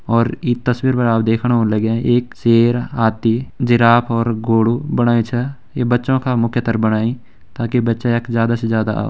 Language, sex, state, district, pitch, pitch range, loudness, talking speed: Hindi, male, Uttarakhand, Tehri Garhwal, 115 Hz, 115-120 Hz, -17 LUFS, 190 wpm